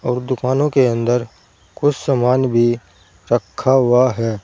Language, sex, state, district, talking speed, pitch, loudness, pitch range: Hindi, male, Uttar Pradesh, Saharanpur, 135 wpm, 125 Hz, -17 LUFS, 115-130 Hz